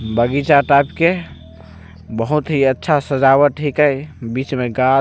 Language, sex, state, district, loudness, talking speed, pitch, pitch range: Maithili, male, Bihar, Begusarai, -16 LUFS, 145 wpm, 135 Hz, 120-145 Hz